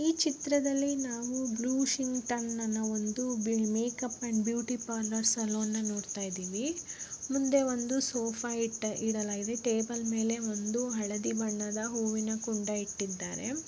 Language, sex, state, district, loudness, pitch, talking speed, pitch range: Kannada, female, Karnataka, Bellary, -32 LUFS, 230 Hz, 120 wpm, 215-250 Hz